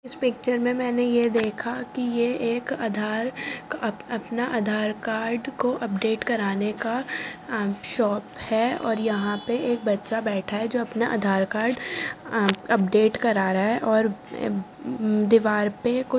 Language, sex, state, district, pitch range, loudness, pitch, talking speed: Hindi, female, Delhi, New Delhi, 215-245 Hz, -25 LUFS, 230 Hz, 140 wpm